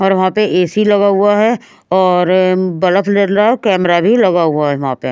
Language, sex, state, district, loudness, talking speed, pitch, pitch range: Hindi, female, Haryana, Rohtak, -12 LUFS, 225 wpm, 190 Hz, 180-205 Hz